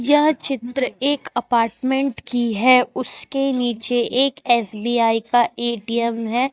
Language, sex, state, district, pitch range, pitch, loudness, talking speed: Hindi, female, Jharkhand, Ranchi, 235-270 Hz, 245 Hz, -19 LUFS, 120 wpm